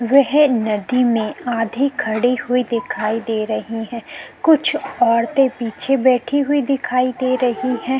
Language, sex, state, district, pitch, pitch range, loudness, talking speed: Hindi, female, Uttarakhand, Tehri Garhwal, 250 Hz, 230-270 Hz, -18 LUFS, 140 wpm